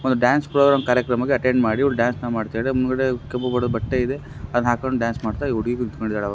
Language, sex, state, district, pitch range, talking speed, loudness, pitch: Kannada, male, Karnataka, Raichur, 115-130 Hz, 150 wpm, -21 LUFS, 125 Hz